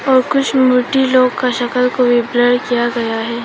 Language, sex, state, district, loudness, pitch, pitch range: Hindi, female, Arunachal Pradesh, Papum Pare, -14 LUFS, 250 Hz, 240-255 Hz